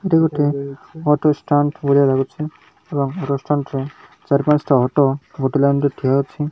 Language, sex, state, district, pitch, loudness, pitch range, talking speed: Odia, male, Odisha, Malkangiri, 145 Hz, -18 LUFS, 140-150 Hz, 165 wpm